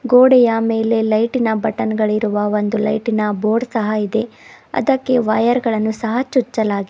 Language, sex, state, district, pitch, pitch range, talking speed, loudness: Kannada, female, Karnataka, Bidar, 225 Hz, 215-240 Hz, 165 wpm, -17 LUFS